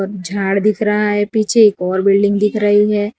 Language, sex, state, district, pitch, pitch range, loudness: Hindi, female, Gujarat, Valsad, 205 Hz, 195-210 Hz, -14 LUFS